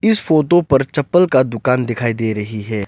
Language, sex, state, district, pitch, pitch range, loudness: Hindi, male, Arunachal Pradesh, Lower Dibang Valley, 130 Hz, 115-160 Hz, -16 LUFS